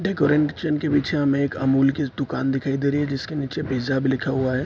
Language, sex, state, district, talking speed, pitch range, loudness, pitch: Hindi, male, Bihar, Araria, 230 wpm, 135-150 Hz, -22 LUFS, 140 Hz